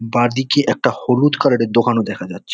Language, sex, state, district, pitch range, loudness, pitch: Bengali, male, West Bengal, Kolkata, 115-130 Hz, -16 LUFS, 120 Hz